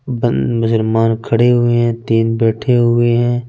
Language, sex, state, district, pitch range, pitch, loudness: Hindi, male, Punjab, Fazilka, 115-120 Hz, 120 Hz, -14 LUFS